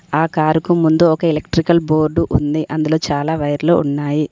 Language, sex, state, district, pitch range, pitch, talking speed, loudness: Telugu, female, Telangana, Komaram Bheem, 150-165 Hz, 155 Hz, 155 wpm, -16 LUFS